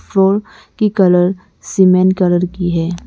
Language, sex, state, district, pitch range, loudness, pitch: Hindi, female, Arunachal Pradesh, Lower Dibang Valley, 180-190 Hz, -14 LUFS, 185 Hz